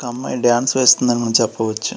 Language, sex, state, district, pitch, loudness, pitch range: Telugu, male, Andhra Pradesh, Srikakulam, 120 Hz, -16 LUFS, 115-125 Hz